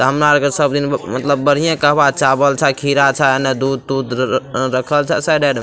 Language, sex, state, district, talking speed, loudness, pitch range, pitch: Maithili, male, Bihar, Madhepura, 215 wpm, -15 LUFS, 135-145 Hz, 140 Hz